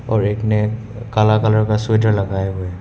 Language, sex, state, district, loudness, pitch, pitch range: Hindi, male, Meghalaya, West Garo Hills, -17 LUFS, 110 Hz, 105-110 Hz